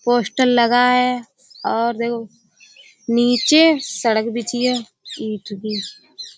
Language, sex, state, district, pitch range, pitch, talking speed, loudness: Hindi, female, Uttar Pradesh, Budaun, 220-250 Hz, 235 Hz, 105 wpm, -18 LUFS